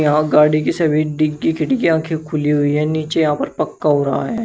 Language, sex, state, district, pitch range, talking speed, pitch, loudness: Hindi, male, Uttar Pradesh, Shamli, 150-160 Hz, 255 wpm, 155 Hz, -17 LUFS